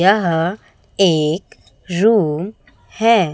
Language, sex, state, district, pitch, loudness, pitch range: Hindi, female, Chhattisgarh, Raipur, 190 Hz, -17 LUFS, 165-215 Hz